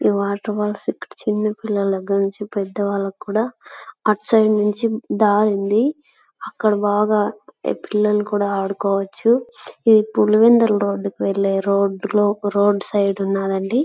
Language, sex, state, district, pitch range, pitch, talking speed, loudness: Telugu, female, Andhra Pradesh, Anantapur, 200-215 Hz, 205 Hz, 130 wpm, -19 LUFS